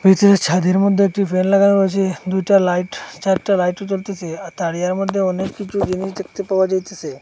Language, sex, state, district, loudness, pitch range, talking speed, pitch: Bengali, male, Assam, Hailakandi, -18 LUFS, 185-195 Hz, 175 wpm, 190 Hz